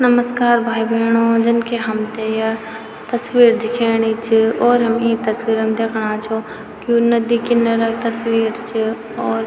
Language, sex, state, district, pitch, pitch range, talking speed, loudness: Garhwali, female, Uttarakhand, Tehri Garhwal, 230 Hz, 220-235 Hz, 150 wpm, -17 LUFS